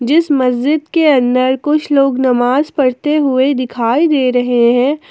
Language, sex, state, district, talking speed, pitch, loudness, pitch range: Hindi, female, Jharkhand, Ranchi, 150 wpm, 265 Hz, -13 LUFS, 250-295 Hz